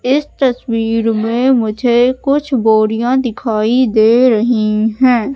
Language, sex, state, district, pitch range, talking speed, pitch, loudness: Hindi, female, Madhya Pradesh, Katni, 225-255 Hz, 110 wpm, 240 Hz, -13 LUFS